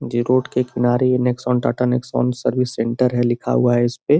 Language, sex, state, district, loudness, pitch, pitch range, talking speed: Hindi, male, Uttar Pradesh, Gorakhpur, -19 LUFS, 125 Hz, 120-125 Hz, 200 wpm